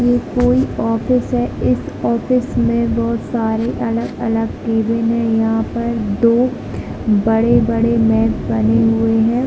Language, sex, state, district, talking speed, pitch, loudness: Hindi, female, Chhattisgarh, Bilaspur, 150 wpm, 225 Hz, -16 LUFS